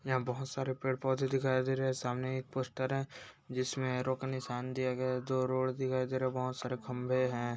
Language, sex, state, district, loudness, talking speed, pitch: Hindi, male, Rajasthan, Nagaur, -35 LUFS, 245 wpm, 130 Hz